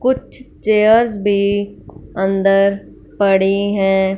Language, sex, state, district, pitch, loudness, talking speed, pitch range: Hindi, female, Punjab, Fazilka, 200 Hz, -15 LUFS, 85 wpm, 195-210 Hz